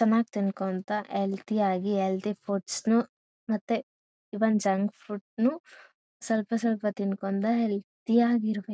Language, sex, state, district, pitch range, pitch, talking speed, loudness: Kannada, female, Karnataka, Bellary, 200-230 Hz, 210 Hz, 125 wpm, -28 LUFS